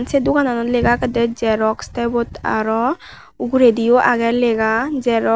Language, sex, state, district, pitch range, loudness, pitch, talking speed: Chakma, female, Tripura, West Tripura, 230-250 Hz, -17 LUFS, 235 Hz, 135 wpm